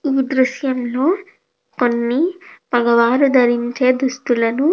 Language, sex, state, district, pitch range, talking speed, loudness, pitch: Telugu, female, Andhra Pradesh, Krishna, 240-275 Hz, 90 wpm, -17 LUFS, 255 Hz